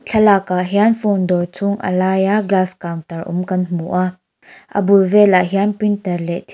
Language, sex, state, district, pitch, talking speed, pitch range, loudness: Mizo, female, Mizoram, Aizawl, 185 Hz, 185 wpm, 180-200 Hz, -16 LUFS